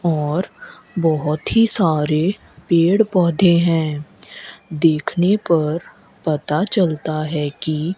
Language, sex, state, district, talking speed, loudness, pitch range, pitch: Hindi, female, Rajasthan, Bikaner, 105 wpm, -18 LUFS, 155-180 Hz, 165 Hz